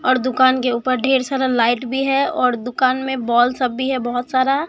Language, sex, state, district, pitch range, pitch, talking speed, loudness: Hindi, male, Bihar, Katihar, 245-265 Hz, 255 Hz, 230 wpm, -18 LUFS